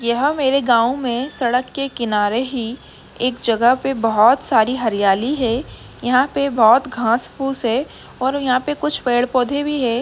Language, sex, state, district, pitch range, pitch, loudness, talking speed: Hindi, female, Bihar, Jamui, 235-270 Hz, 250 Hz, -18 LUFS, 175 wpm